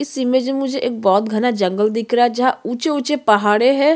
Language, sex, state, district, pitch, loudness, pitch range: Hindi, female, Chhattisgarh, Sukma, 245 Hz, -17 LUFS, 215-270 Hz